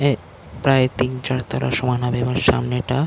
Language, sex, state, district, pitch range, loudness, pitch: Bengali, male, West Bengal, Dakshin Dinajpur, 125-130 Hz, -20 LUFS, 125 Hz